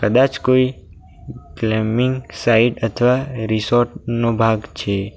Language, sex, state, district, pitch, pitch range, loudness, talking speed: Gujarati, male, Gujarat, Valsad, 115 Hz, 105-125 Hz, -18 LUFS, 105 wpm